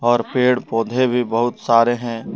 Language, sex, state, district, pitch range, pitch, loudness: Hindi, male, Jharkhand, Deoghar, 115-125 Hz, 120 Hz, -18 LUFS